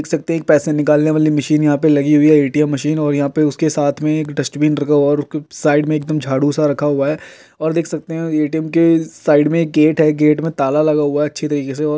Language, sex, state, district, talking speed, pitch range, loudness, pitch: Hindi, male, Uttar Pradesh, Jalaun, 285 wpm, 145-155 Hz, -15 LUFS, 150 Hz